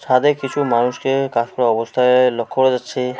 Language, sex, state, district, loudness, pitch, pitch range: Bengali, male, West Bengal, Alipurduar, -17 LUFS, 125 Hz, 120-135 Hz